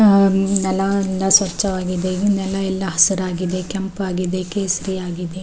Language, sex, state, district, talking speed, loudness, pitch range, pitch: Kannada, female, Karnataka, Raichur, 100 wpm, -18 LUFS, 185-195 Hz, 190 Hz